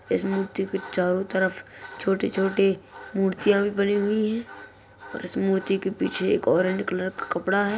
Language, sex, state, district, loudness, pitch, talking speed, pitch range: Hindi, female, Bihar, Purnia, -25 LUFS, 195 Hz, 170 wpm, 190-200 Hz